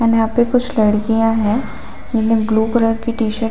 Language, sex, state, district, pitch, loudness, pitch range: Hindi, female, Chhattisgarh, Bilaspur, 225 Hz, -16 LUFS, 220-235 Hz